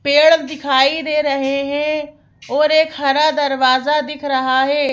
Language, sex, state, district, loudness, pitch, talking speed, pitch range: Hindi, female, Madhya Pradesh, Bhopal, -16 LUFS, 290 Hz, 145 wpm, 275-300 Hz